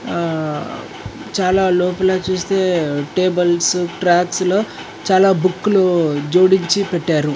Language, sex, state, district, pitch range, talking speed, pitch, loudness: Telugu, male, Andhra Pradesh, Krishna, 170-190 Hz, 90 wpm, 180 Hz, -16 LUFS